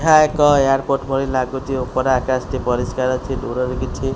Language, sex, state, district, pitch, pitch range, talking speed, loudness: Odia, male, Odisha, Khordha, 130 Hz, 130-135 Hz, 190 wpm, -18 LUFS